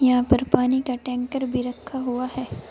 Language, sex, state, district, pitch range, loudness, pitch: Hindi, female, Uttar Pradesh, Saharanpur, 250-260 Hz, -24 LUFS, 255 Hz